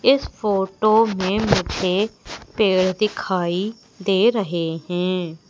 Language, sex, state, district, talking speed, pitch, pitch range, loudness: Hindi, female, Madhya Pradesh, Umaria, 100 wpm, 195 Hz, 185-215 Hz, -20 LUFS